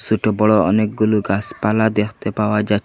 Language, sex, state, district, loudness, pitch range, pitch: Bengali, male, Assam, Hailakandi, -17 LUFS, 105-110 Hz, 105 Hz